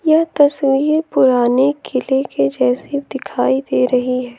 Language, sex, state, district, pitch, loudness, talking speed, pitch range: Hindi, female, Jharkhand, Ranchi, 260 Hz, -16 LUFS, 135 wpm, 225-280 Hz